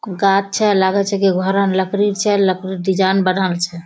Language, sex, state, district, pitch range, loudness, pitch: Hindi, female, Bihar, Kishanganj, 190-200 Hz, -16 LUFS, 190 Hz